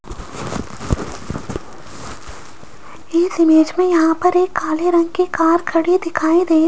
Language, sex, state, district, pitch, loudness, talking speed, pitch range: Hindi, female, Rajasthan, Jaipur, 335 Hz, -17 LUFS, 125 wpm, 325-360 Hz